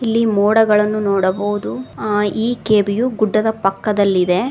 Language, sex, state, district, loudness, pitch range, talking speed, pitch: Kannada, female, Karnataka, Koppal, -16 LUFS, 200-220 Hz, 105 wpm, 210 Hz